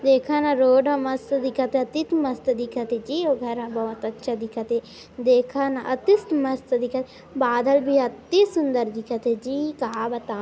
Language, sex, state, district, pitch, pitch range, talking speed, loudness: Hindi, female, Chhattisgarh, Kabirdham, 255 Hz, 240-275 Hz, 205 wpm, -23 LUFS